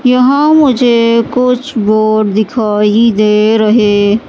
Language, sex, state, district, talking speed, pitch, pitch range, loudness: Hindi, female, Madhya Pradesh, Katni, 100 wpm, 220 Hz, 215-250 Hz, -10 LUFS